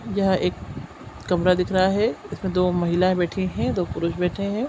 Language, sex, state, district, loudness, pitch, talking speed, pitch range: Hindi, female, Chhattisgarh, Sukma, -22 LUFS, 180 Hz, 190 wpm, 180-190 Hz